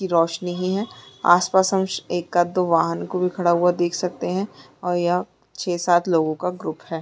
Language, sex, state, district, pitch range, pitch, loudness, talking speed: Hindi, female, Chhattisgarh, Bilaspur, 175-185 Hz, 175 Hz, -22 LUFS, 205 wpm